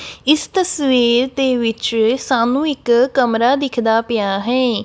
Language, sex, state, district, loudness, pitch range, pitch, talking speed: Punjabi, female, Punjab, Kapurthala, -16 LUFS, 230-270 Hz, 245 Hz, 125 wpm